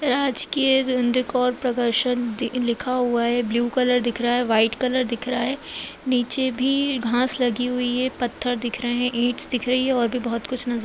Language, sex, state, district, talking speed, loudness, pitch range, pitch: Kumaoni, female, Uttarakhand, Uttarkashi, 190 wpm, -21 LUFS, 240-255 Hz, 250 Hz